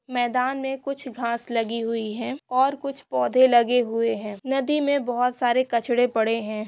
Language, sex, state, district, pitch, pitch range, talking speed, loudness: Maithili, female, Bihar, Supaul, 245 Hz, 230-265 Hz, 180 wpm, -23 LUFS